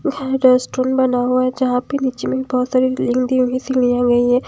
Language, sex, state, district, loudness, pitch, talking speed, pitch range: Hindi, female, Himachal Pradesh, Shimla, -17 LUFS, 255 Hz, 160 wpm, 250-260 Hz